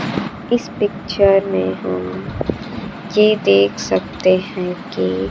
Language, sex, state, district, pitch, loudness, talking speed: Hindi, female, Bihar, Kaimur, 180 Hz, -18 LUFS, 100 wpm